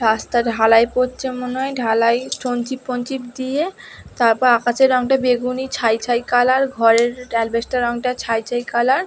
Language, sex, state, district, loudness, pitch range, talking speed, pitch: Bengali, female, West Bengal, Dakshin Dinajpur, -18 LUFS, 235-260 Hz, 185 wpm, 245 Hz